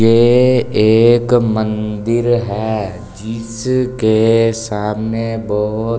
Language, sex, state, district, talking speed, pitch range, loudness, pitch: Hindi, male, Delhi, New Delhi, 80 wpm, 110-120 Hz, -15 LUFS, 115 Hz